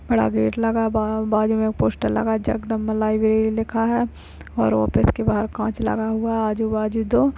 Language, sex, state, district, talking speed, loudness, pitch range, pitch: Hindi, female, Uttar Pradesh, Jyotiba Phule Nagar, 195 wpm, -21 LUFS, 215-225 Hz, 220 Hz